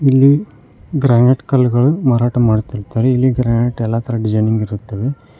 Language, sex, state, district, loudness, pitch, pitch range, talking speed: Kannada, male, Karnataka, Koppal, -15 LUFS, 120 Hz, 110-130 Hz, 120 wpm